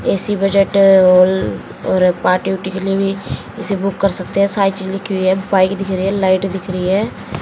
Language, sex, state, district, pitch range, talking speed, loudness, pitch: Hindi, female, Haryana, Jhajjar, 185-195 Hz, 220 wpm, -15 LUFS, 195 Hz